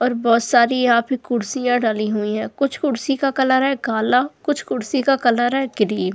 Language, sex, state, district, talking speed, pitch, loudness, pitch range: Hindi, female, Goa, North and South Goa, 205 wpm, 245 Hz, -19 LUFS, 230-270 Hz